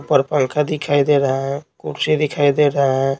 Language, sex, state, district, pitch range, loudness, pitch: Hindi, male, Bihar, Patna, 135-150 Hz, -18 LUFS, 145 Hz